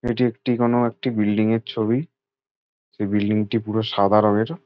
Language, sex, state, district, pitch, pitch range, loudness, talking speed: Bengali, male, West Bengal, Jalpaiguri, 115 Hz, 105-120 Hz, -21 LUFS, 180 wpm